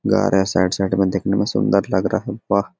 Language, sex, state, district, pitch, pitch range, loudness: Hindi, male, Jharkhand, Sahebganj, 95 Hz, 95-100 Hz, -19 LUFS